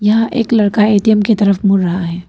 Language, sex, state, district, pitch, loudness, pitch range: Hindi, female, Arunachal Pradesh, Papum Pare, 210 Hz, -13 LUFS, 195-220 Hz